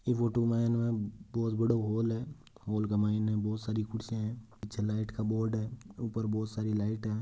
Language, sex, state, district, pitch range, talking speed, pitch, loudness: Marwari, male, Rajasthan, Nagaur, 110-115 Hz, 190 wpm, 110 Hz, -33 LUFS